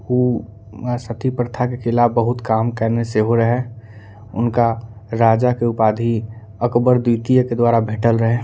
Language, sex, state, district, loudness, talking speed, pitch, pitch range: Angika, male, Bihar, Bhagalpur, -18 LUFS, 155 wpm, 115 Hz, 110-120 Hz